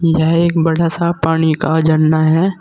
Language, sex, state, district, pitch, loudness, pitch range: Hindi, male, Uttar Pradesh, Saharanpur, 165 Hz, -14 LUFS, 160-170 Hz